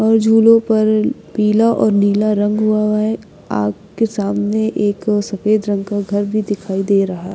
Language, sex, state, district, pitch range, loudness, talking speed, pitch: Hindi, female, Bihar, Patna, 200-215 Hz, -16 LUFS, 170 wpm, 210 Hz